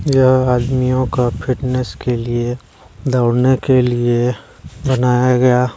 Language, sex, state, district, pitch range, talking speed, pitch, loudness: Hindi, male, Chhattisgarh, Balrampur, 120-130 Hz, 115 wpm, 125 Hz, -16 LUFS